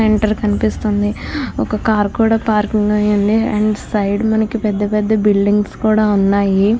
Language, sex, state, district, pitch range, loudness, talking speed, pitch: Telugu, female, Andhra Pradesh, Krishna, 205-220 Hz, -15 LUFS, 140 wpm, 210 Hz